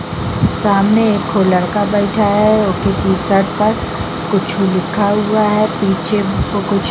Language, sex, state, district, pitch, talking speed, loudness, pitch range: Hindi, female, Bihar, Vaishali, 205 Hz, 140 wpm, -14 LUFS, 195-210 Hz